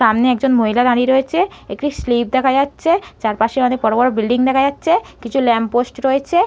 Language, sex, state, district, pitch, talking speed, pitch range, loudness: Bengali, female, West Bengal, Malda, 255 Hz, 185 wpm, 240-270 Hz, -16 LUFS